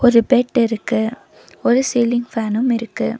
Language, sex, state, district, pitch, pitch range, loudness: Tamil, female, Tamil Nadu, Nilgiris, 240 Hz, 230-250 Hz, -18 LUFS